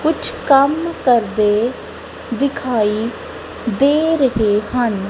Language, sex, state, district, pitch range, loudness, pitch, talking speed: Punjabi, female, Punjab, Kapurthala, 215-280 Hz, -17 LUFS, 245 Hz, 80 wpm